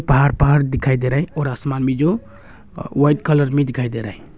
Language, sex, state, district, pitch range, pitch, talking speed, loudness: Hindi, male, Arunachal Pradesh, Longding, 130-145 Hz, 140 Hz, 235 wpm, -18 LUFS